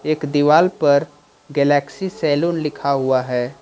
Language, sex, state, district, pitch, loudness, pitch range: Hindi, male, Jharkhand, Ranchi, 145 Hz, -18 LUFS, 140-155 Hz